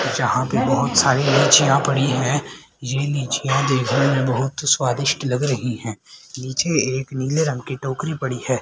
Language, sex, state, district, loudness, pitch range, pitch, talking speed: Hindi, male, Haryana, Rohtak, -19 LUFS, 130-140 Hz, 135 Hz, 165 wpm